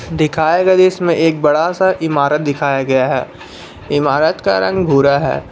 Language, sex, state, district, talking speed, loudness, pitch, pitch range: Hindi, male, Jharkhand, Palamu, 165 wpm, -14 LUFS, 155 Hz, 140-170 Hz